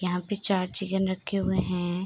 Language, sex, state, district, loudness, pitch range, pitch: Hindi, female, Bihar, Darbhanga, -28 LUFS, 180-195 Hz, 190 Hz